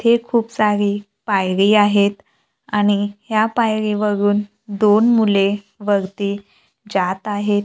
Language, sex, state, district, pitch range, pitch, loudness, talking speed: Marathi, female, Maharashtra, Gondia, 200-215 Hz, 205 Hz, -18 LUFS, 100 wpm